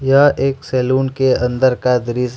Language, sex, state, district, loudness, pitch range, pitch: Hindi, male, Jharkhand, Ranchi, -15 LUFS, 125-135 Hz, 130 Hz